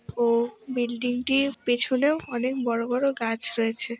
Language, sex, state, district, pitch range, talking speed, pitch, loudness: Bengali, female, West Bengal, Jhargram, 235-260 Hz, 150 wpm, 245 Hz, -25 LUFS